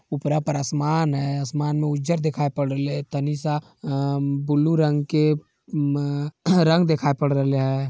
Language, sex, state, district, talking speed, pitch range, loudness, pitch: Magahi, male, Bihar, Jamui, 165 wpm, 140-150 Hz, -23 LUFS, 145 Hz